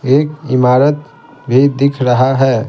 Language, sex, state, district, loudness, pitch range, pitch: Hindi, male, Bihar, Patna, -12 LUFS, 130-140 Hz, 135 Hz